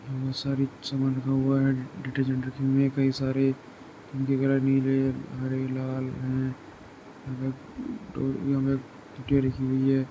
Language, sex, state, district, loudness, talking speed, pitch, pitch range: Hindi, male, Uttar Pradesh, Jyotiba Phule Nagar, -28 LUFS, 125 wpm, 135 Hz, 130-135 Hz